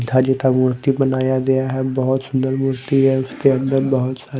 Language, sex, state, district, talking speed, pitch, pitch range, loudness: Hindi, male, Odisha, Malkangiri, 175 wpm, 130 Hz, 130-135 Hz, -18 LUFS